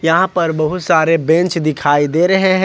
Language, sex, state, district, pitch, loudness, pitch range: Hindi, male, Jharkhand, Ranchi, 165 Hz, -14 LUFS, 155-180 Hz